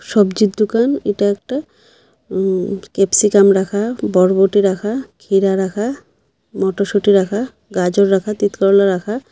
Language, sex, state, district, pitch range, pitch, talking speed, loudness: Bengali, female, Assam, Hailakandi, 195-215 Hz, 200 Hz, 115 wpm, -16 LUFS